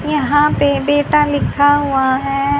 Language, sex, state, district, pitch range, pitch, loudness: Hindi, female, Haryana, Charkhi Dadri, 275-290 Hz, 285 Hz, -14 LUFS